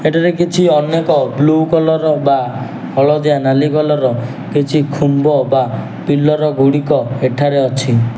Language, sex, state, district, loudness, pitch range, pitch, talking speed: Odia, male, Odisha, Nuapada, -14 LUFS, 135-155 Hz, 145 Hz, 130 wpm